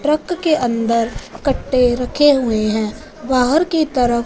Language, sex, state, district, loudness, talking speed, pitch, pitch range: Hindi, female, Punjab, Fazilka, -17 LUFS, 155 wpm, 250 Hz, 235-300 Hz